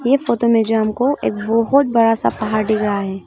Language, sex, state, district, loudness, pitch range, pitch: Hindi, female, Arunachal Pradesh, Longding, -17 LUFS, 215-240 Hz, 225 Hz